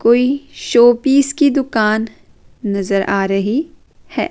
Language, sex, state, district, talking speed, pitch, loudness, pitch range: Hindi, female, Chandigarh, Chandigarh, 125 wpm, 235 Hz, -15 LUFS, 205-275 Hz